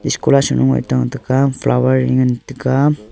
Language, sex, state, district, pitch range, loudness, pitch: Wancho, male, Arunachal Pradesh, Longding, 110-135 Hz, -15 LUFS, 130 Hz